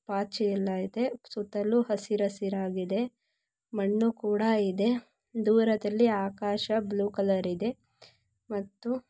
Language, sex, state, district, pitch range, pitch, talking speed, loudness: Kannada, female, Karnataka, Mysore, 200-230 Hz, 210 Hz, 105 wpm, -29 LUFS